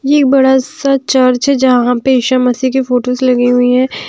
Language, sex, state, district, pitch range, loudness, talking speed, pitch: Hindi, female, Haryana, Jhajjar, 250-265 Hz, -11 LUFS, 235 wpm, 260 Hz